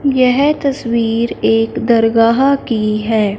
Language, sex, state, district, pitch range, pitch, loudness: Hindi, female, Punjab, Fazilka, 225-270 Hz, 230 Hz, -14 LUFS